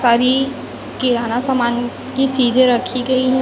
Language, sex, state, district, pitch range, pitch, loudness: Hindi, female, Chhattisgarh, Raipur, 240-260 Hz, 250 Hz, -17 LUFS